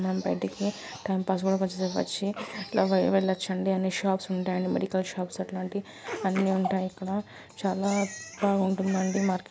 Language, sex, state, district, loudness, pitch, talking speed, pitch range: Telugu, female, Telangana, Karimnagar, -29 LUFS, 190 Hz, 130 wpm, 185-195 Hz